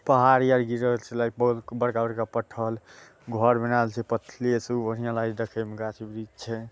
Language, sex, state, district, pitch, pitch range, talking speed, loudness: Maithili, male, Bihar, Saharsa, 115 Hz, 115-120 Hz, 170 wpm, -26 LUFS